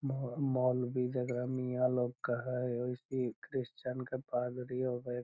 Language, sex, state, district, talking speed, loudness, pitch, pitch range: Magahi, male, Bihar, Lakhisarai, 150 wpm, -36 LUFS, 125 Hz, 125-130 Hz